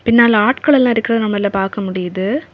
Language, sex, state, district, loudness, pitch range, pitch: Tamil, female, Tamil Nadu, Kanyakumari, -15 LUFS, 195-235 Hz, 220 Hz